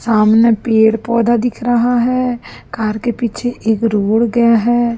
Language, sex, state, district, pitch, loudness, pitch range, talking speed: Hindi, female, Chhattisgarh, Raipur, 235 Hz, -14 LUFS, 220-240 Hz, 155 wpm